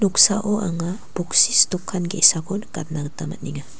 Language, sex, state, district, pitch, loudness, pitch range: Garo, female, Meghalaya, West Garo Hills, 180 Hz, -18 LUFS, 160-200 Hz